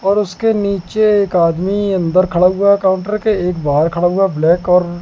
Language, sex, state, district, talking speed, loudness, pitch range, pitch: Hindi, male, Madhya Pradesh, Katni, 205 wpm, -14 LUFS, 175-200 Hz, 185 Hz